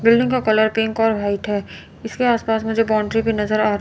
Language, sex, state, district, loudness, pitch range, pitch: Hindi, female, Chandigarh, Chandigarh, -19 LUFS, 215-225 Hz, 220 Hz